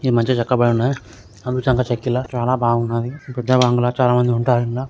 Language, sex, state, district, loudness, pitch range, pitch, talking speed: Telugu, male, Andhra Pradesh, Srikakulam, -18 LUFS, 120-130 Hz, 125 Hz, 125 wpm